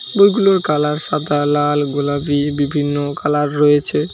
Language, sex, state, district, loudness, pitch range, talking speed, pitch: Bengali, male, West Bengal, Jhargram, -16 LUFS, 145-150 Hz, 115 wpm, 145 Hz